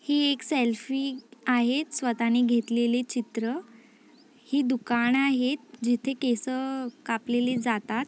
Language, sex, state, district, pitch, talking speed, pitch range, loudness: Marathi, female, Maharashtra, Nagpur, 245 Hz, 110 wpm, 240-270 Hz, -27 LUFS